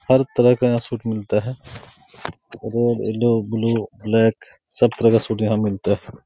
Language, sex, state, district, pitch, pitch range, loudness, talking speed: Hindi, male, Jharkhand, Sahebganj, 115 Hz, 110-120 Hz, -19 LUFS, 165 wpm